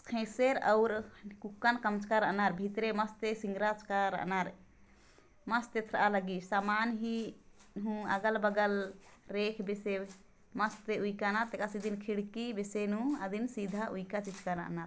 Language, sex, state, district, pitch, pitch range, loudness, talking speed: Sadri, female, Chhattisgarh, Jashpur, 210 Hz, 200-220 Hz, -34 LUFS, 95 wpm